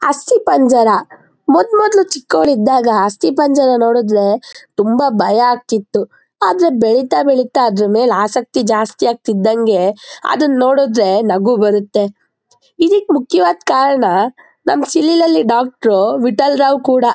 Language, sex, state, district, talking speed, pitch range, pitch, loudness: Kannada, female, Karnataka, Mysore, 110 wpm, 220-285 Hz, 245 Hz, -13 LUFS